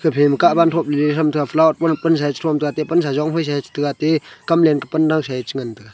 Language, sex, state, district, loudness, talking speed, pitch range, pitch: Wancho, male, Arunachal Pradesh, Longding, -18 LUFS, 260 wpm, 145-160 Hz, 155 Hz